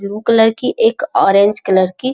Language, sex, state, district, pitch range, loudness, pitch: Hindi, male, Bihar, Jamui, 200-250 Hz, -13 LUFS, 225 Hz